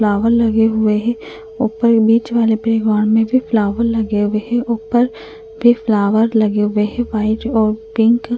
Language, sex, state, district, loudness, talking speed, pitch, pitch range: Hindi, female, Uttarakhand, Tehri Garhwal, -15 LUFS, 180 wpm, 225 Hz, 215-235 Hz